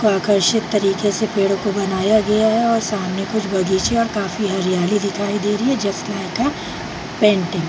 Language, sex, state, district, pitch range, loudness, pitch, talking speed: Hindi, female, Bihar, Jahanabad, 195-220 Hz, -18 LUFS, 205 Hz, 185 wpm